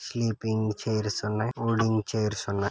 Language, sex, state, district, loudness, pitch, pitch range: Telugu, male, Karnataka, Gulbarga, -28 LUFS, 110 Hz, 105-115 Hz